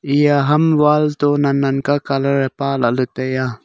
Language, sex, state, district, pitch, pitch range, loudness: Wancho, male, Arunachal Pradesh, Longding, 140 Hz, 135-145 Hz, -16 LUFS